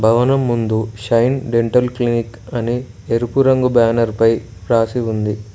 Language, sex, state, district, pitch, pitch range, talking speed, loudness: Telugu, male, Telangana, Mahabubabad, 115 Hz, 110-125 Hz, 130 wpm, -17 LUFS